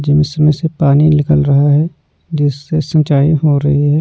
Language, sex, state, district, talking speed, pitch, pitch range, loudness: Hindi, male, Punjab, Pathankot, 165 wpm, 150 Hz, 145-155 Hz, -12 LUFS